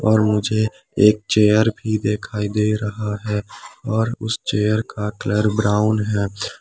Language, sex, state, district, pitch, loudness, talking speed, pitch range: Hindi, male, Jharkhand, Palamu, 105 Hz, -20 LUFS, 145 wpm, 105-110 Hz